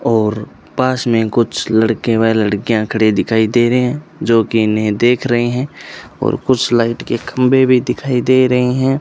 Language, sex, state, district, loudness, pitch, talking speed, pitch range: Hindi, male, Rajasthan, Bikaner, -14 LUFS, 120 Hz, 180 wpm, 110-130 Hz